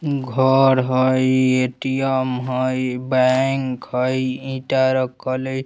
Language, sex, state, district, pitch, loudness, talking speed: Bajjika, male, Bihar, Vaishali, 130 Hz, -19 LUFS, 95 wpm